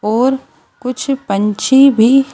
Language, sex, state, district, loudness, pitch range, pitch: Hindi, female, Madhya Pradesh, Bhopal, -13 LUFS, 220-270 Hz, 255 Hz